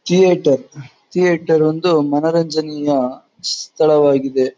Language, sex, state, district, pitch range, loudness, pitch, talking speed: Kannada, male, Karnataka, Chamarajanagar, 140-165 Hz, -16 LUFS, 155 Hz, 65 wpm